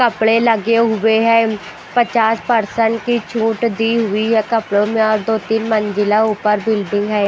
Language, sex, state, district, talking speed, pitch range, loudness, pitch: Hindi, female, Bihar, Patna, 165 wpm, 215-230 Hz, -16 LUFS, 220 Hz